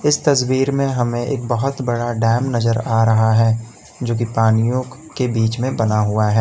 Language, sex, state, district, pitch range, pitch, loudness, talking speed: Hindi, male, Uttar Pradesh, Lalitpur, 115-130 Hz, 120 Hz, -18 LUFS, 195 wpm